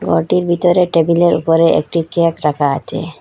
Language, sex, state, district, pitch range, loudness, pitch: Bengali, female, Assam, Hailakandi, 150-175 Hz, -14 LUFS, 165 Hz